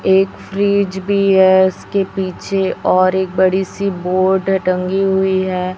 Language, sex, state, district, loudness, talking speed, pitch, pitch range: Hindi, female, Chhattisgarh, Raipur, -15 LUFS, 145 wpm, 190 Hz, 185-195 Hz